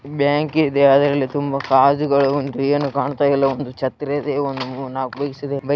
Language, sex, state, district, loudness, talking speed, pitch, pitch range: Kannada, male, Karnataka, Raichur, -19 LUFS, 155 wpm, 140 Hz, 135-145 Hz